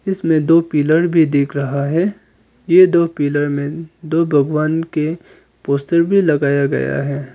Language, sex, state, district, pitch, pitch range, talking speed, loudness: Hindi, male, Arunachal Pradesh, Papum Pare, 155 Hz, 140-170 Hz, 155 wpm, -16 LUFS